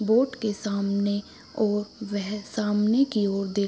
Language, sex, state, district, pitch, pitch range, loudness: Hindi, female, Bihar, Supaul, 210 Hz, 200-220 Hz, -26 LUFS